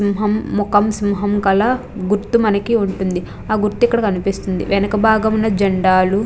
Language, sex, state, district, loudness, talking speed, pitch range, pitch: Telugu, female, Andhra Pradesh, Chittoor, -17 LUFS, 145 wpm, 195-215 Hz, 205 Hz